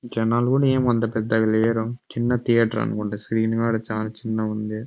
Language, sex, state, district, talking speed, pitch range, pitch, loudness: Telugu, male, Andhra Pradesh, Anantapur, 160 wpm, 110-120 Hz, 115 Hz, -22 LUFS